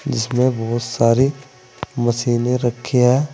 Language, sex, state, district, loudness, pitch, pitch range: Hindi, male, Uttar Pradesh, Saharanpur, -18 LUFS, 125 Hz, 120-130 Hz